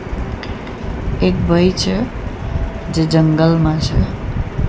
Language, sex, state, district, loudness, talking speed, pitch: Gujarati, female, Gujarat, Gandhinagar, -17 LUFS, 75 wpm, 155 Hz